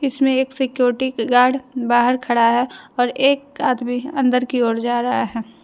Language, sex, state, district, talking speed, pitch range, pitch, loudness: Hindi, female, Jharkhand, Deoghar, 180 wpm, 240-265 Hz, 250 Hz, -18 LUFS